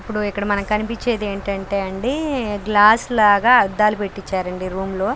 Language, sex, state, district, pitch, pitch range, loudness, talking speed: Telugu, female, Andhra Pradesh, Krishna, 205 Hz, 195-220 Hz, -18 LUFS, 140 wpm